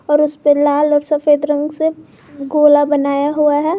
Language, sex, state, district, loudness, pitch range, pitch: Hindi, female, Jharkhand, Garhwa, -14 LUFS, 290-300 Hz, 295 Hz